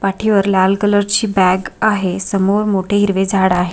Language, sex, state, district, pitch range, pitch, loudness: Marathi, female, Maharashtra, Sindhudurg, 190-205 Hz, 195 Hz, -15 LUFS